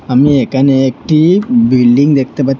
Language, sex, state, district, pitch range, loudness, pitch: Bengali, male, Assam, Hailakandi, 130-155 Hz, -10 LUFS, 135 Hz